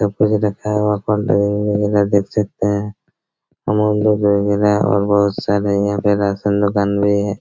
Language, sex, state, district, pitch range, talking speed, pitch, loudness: Hindi, male, Chhattisgarh, Raigarh, 100-105 Hz, 120 wpm, 100 Hz, -17 LUFS